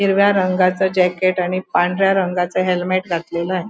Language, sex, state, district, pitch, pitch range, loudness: Marathi, female, Goa, North and South Goa, 185 Hz, 180-190 Hz, -18 LUFS